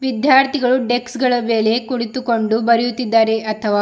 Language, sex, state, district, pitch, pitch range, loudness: Kannada, female, Karnataka, Bidar, 240 Hz, 225-255 Hz, -16 LUFS